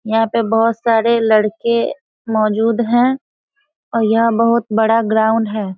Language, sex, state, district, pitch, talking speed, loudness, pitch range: Hindi, female, Bihar, Sitamarhi, 225 Hz, 135 wpm, -15 LUFS, 220-235 Hz